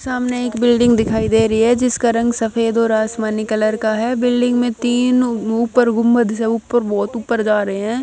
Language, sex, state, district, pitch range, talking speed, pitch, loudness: Hindi, female, Bihar, Katihar, 220-240 Hz, 200 wpm, 230 Hz, -16 LUFS